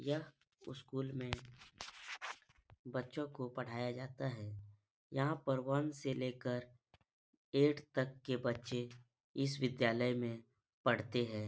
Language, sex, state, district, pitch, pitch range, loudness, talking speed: Hindi, male, Bihar, Supaul, 125 Hz, 120-135 Hz, -40 LUFS, 115 wpm